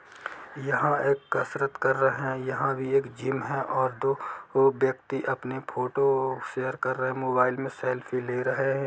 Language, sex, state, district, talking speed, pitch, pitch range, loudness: Hindi, male, Jharkhand, Jamtara, 175 wpm, 135 Hz, 130-135 Hz, -27 LUFS